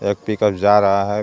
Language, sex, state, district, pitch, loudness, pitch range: Hindi, male, Jharkhand, Garhwa, 105 Hz, -16 LUFS, 100-105 Hz